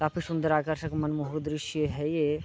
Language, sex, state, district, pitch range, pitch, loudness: Hindi, male, Uttar Pradesh, Jalaun, 150-155 Hz, 155 Hz, -30 LUFS